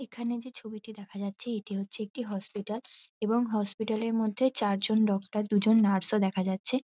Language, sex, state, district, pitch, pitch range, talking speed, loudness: Bengali, female, West Bengal, North 24 Parganas, 215 Hz, 200-225 Hz, 185 wpm, -30 LUFS